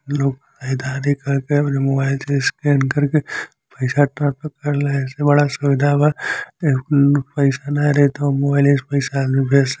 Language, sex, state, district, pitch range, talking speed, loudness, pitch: Bhojpuri, male, Uttar Pradesh, Gorakhpur, 135-145 Hz, 185 wpm, -18 LUFS, 140 Hz